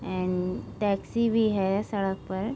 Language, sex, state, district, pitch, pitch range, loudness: Hindi, female, Chhattisgarh, Raigarh, 195 Hz, 190-215 Hz, -27 LUFS